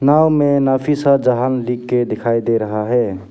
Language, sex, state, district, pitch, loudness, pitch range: Hindi, male, Arunachal Pradesh, Papum Pare, 125 Hz, -16 LUFS, 115-140 Hz